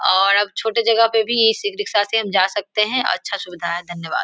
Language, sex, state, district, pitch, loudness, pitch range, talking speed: Hindi, female, Bihar, Samastipur, 205 Hz, -18 LUFS, 190-225 Hz, 255 wpm